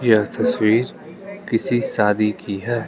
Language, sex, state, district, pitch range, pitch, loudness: Hindi, male, Arunachal Pradesh, Lower Dibang Valley, 105-125 Hz, 115 Hz, -20 LUFS